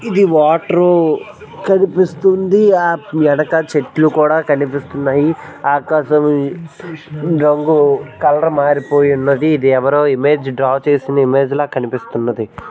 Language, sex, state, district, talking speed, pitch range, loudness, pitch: Telugu, male, Andhra Pradesh, Visakhapatnam, 80 wpm, 140-160 Hz, -14 LUFS, 150 Hz